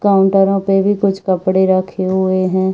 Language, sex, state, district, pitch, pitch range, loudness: Hindi, female, Uttar Pradesh, Varanasi, 190 Hz, 185-195 Hz, -14 LUFS